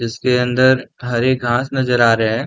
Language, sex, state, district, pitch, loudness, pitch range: Hindi, male, Bihar, Darbhanga, 125 Hz, -16 LUFS, 120-130 Hz